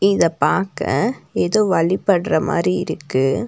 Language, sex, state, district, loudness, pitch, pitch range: Tamil, female, Tamil Nadu, Nilgiris, -18 LUFS, 175 Hz, 165-195 Hz